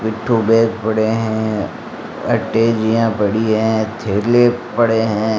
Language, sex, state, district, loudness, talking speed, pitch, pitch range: Hindi, male, Rajasthan, Bikaner, -16 LUFS, 110 wpm, 110 Hz, 110-115 Hz